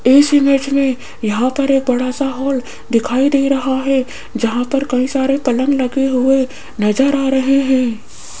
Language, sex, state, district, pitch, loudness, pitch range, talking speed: Hindi, female, Rajasthan, Jaipur, 265 Hz, -15 LUFS, 250-275 Hz, 170 wpm